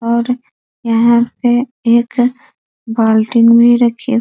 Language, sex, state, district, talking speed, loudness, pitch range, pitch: Hindi, female, Bihar, East Champaran, 115 wpm, -12 LUFS, 230-245 Hz, 235 Hz